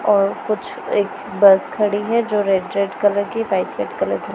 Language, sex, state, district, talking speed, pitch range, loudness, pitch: Hindi, female, Punjab, Pathankot, 205 wpm, 195-210 Hz, -18 LUFS, 200 Hz